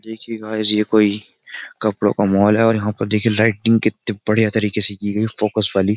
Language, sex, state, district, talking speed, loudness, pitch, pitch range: Hindi, male, Uttar Pradesh, Jyotiba Phule Nagar, 210 wpm, -17 LUFS, 105 Hz, 105-110 Hz